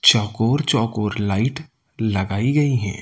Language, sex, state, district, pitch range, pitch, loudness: Hindi, male, Delhi, New Delhi, 105-135 Hz, 115 Hz, -20 LUFS